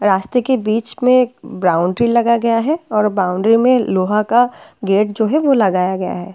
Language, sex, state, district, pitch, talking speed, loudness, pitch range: Hindi, female, Delhi, New Delhi, 225 Hz, 190 wpm, -15 LUFS, 195-245 Hz